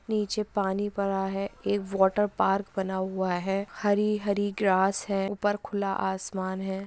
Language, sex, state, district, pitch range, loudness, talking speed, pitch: Hindi, female, Bihar, Madhepura, 190-205 Hz, -28 LUFS, 150 wpm, 195 Hz